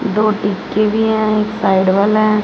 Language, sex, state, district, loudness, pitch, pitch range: Hindi, female, Punjab, Fazilka, -15 LUFS, 215 Hz, 205-215 Hz